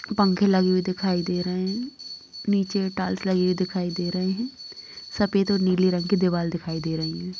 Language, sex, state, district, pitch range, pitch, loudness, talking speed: Hindi, female, Bihar, Muzaffarpur, 180-200 Hz, 185 Hz, -24 LUFS, 205 wpm